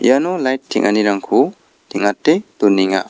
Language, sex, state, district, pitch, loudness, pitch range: Garo, male, Meghalaya, West Garo Hills, 105 Hz, -16 LUFS, 100-130 Hz